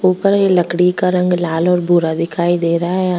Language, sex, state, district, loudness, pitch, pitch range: Hindi, female, Bihar, Kishanganj, -15 LUFS, 180 Hz, 170-185 Hz